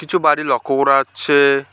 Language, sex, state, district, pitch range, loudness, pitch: Bengali, male, West Bengal, Alipurduar, 135-150 Hz, -15 LUFS, 140 Hz